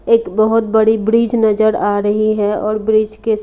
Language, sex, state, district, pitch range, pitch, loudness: Hindi, female, Haryana, Rohtak, 215-225 Hz, 215 Hz, -14 LUFS